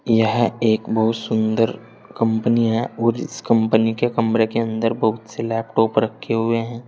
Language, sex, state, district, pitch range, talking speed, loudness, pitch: Hindi, male, Uttar Pradesh, Saharanpur, 110-115 Hz, 165 wpm, -20 LUFS, 115 Hz